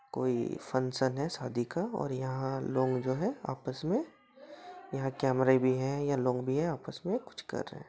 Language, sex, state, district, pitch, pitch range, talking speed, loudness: Hindi, male, Jharkhand, Sahebganj, 135 Hz, 130-170 Hz, 195 wpm, -33 LUFS